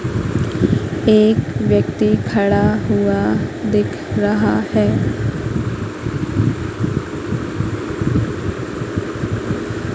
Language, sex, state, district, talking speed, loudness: Hindi, female, Madhya Pradesh, Katni, 40 wpm, -18 LUFS